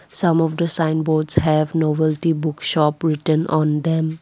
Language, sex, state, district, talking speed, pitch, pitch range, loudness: English, female, Assam, Kamrup Metropolitan, 170 wpm, 160 Hz, 155-165 Hz, -19 LUFS